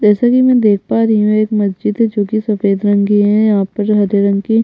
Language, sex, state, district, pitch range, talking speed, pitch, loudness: Hindi, female, Chhattisgarh, Bastar, 205-220 Hz, 270 wpm, 210 Hz, -13 LUFS